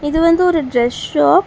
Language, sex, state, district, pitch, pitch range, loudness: Tamil, female, Tamil Nadu, Chennai, 290 Hz, 230-330 Hz, -15 LUFS